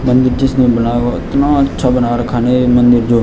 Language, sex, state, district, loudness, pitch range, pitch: Hindi, male, Uttarakhand, Tehri Garhwal, -12 LUFS, 120-130 Hz, 125 Hz